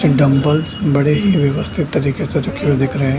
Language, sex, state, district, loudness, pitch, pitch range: Hindi, male, Bihar, Samastipur, -16 LUFS, 145 Hz, 140-150 Hz